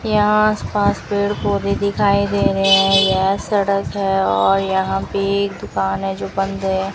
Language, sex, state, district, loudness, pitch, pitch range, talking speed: Hindi, female, Rajasthan, Bikaner, -17 LUFS, 195 Hz, 190-200 Hz, 180 wpm